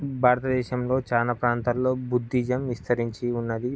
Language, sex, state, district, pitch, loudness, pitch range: Telugu, male, Andhra Pradesh, Guntur, 125 Hz, -25 LUFS, 120-130 Hz